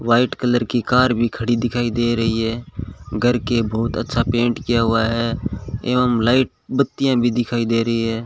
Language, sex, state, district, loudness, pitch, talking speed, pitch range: Hindi, male, Rajasthan, Bikaner, -19 LUFS, 120 Hz, 190 wpm, 115-120 Hz